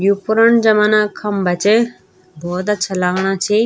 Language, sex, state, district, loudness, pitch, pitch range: Garhwali, female, Uttarakhand, Tehri Garhwal, -15 LUFS, 205 Hz, 185-215 Hz